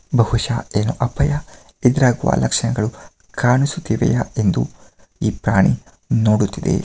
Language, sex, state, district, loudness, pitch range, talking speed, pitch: Kannada, male, Karnataka, Mysore, -19 LUFS, 115-135 Hz, 95 wpm, 120 Hz